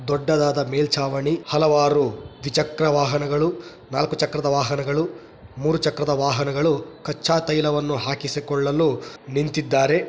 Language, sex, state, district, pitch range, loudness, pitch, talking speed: Kannada, male, Karnataka, Chamarajanagar, 140-155 Hz, -22 LUFS, 145 Hz, 90 wpm